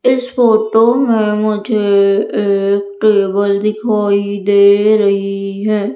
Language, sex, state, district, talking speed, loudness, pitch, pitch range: Hindi, female, Madhya Pradesh, Umaria, 100 wpm, -13 LUFS, 210 Hz, 200-215 Hz